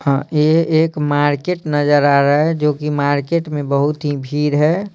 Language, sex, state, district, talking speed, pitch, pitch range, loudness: Hindi, male, Bihar, Patna, 195 wpm, 150 Hz, 145-155 Hz, -16 LUFS